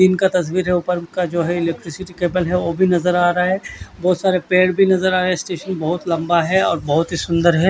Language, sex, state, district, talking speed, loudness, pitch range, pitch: Hindi, male, Odisha, Khordha, 265 wpm, -18 LUFS, 170-185 Hz, 180 Hz